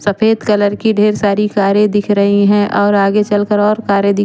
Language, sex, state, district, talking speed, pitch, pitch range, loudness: Hindi, female, Chandigarh, Chandigarh, 225 wpm, 205 Hz, 200-210 Hz, -12 LUFS